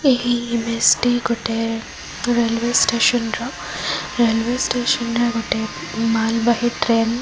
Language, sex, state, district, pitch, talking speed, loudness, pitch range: Odia, female, Odisha, Khordha, 235 Hz, 115 wpm, -19 LUFS, 225-240 Hz